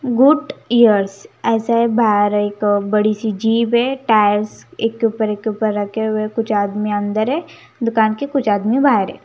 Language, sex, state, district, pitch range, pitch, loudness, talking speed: Hindi, female, Punjab, Kapurthala, 210-235 Hz, 220 Hz, -17 LUFS, 195 wpm